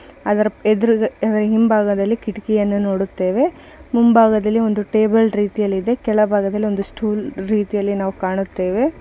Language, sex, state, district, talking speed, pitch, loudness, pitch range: Kannada, female, Karnataka, Bijapur, 105 wpm, 215 Hz, -18 LUFS, 200-220 Hz